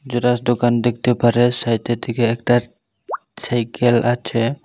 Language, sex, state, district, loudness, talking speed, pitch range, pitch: Bengali, male, Tripura, Unakoti, -18 LUFS, 130 wpm, 115-120 Hz, 120 Hz